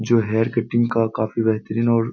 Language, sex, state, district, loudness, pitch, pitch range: Hindi, male, Bihar, Jamui, -20 LUFS, 115 Hz, 110-115 Hz